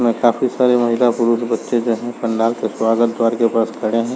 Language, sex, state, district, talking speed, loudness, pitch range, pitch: Hindi, male, Chhattisgarh, Sarguja, 230 wpm, -17 LUFS, 115-120 Hz, 115 Hz